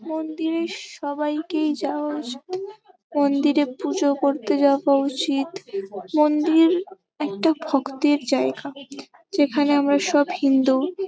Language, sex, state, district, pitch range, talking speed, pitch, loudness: Bengali, female, West Bengal, Kolkata, 280-325 Hz, 95 wpm, 295 Hz, -22 LUFS